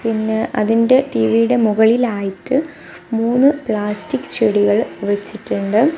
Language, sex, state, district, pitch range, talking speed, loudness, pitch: Malayalam, female, Kerala, Kasaragod, 210-245 Hz, 90 wpm, -17 LUFS, 225 Hz